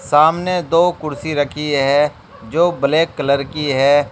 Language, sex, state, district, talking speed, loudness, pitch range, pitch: Hindi, male, Uttar Pradesh, Shamli, 145 wpm, -16 LUFS, 140-160 Hz, 150 Hz